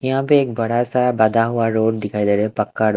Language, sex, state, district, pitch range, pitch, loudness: Hindi, male, Punjab, Kapurthala, 110-125 Hz, 115 Hz, -18 LUFS